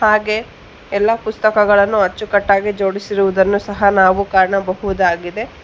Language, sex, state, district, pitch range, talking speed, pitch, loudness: Kannada, female, Karnataka, Bangalore, 195-210 Hz, 85 wpm, 200 Hz, -15 LUFS